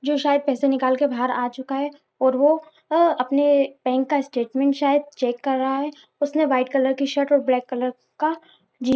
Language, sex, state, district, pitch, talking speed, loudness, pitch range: Hindi, female, Jharkhand, Jamtara, 275 Hz, 205 wpm, -22 LUFS, 260-290 Hz